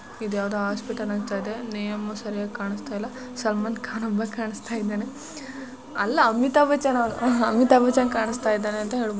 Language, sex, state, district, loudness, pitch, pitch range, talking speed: Kannada, female, Karnataka, Shimoga, -24 LUFS, 225 Hz, 210-250 Hz, 155 wpm